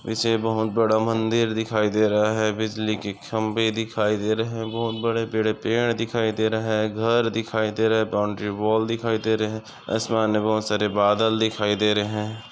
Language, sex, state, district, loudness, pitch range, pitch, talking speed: Hindi, male, Maharashtra, Aurangabad, -23 LUFS, 110-115 Hz, 110 Hz, 190 wpm